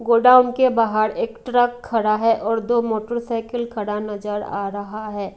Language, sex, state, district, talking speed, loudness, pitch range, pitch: Hindi, female, Haryana, Rohtak, 165 wpm, -20 LUFS, 210-235 Hz, 225 Hz